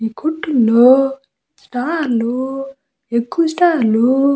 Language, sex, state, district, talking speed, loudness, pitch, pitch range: Telugu, female, Andhra Pradesh, Visakhapatnam, 110 wpm, -15 LUFS, 270 Hz, 240-295 Hz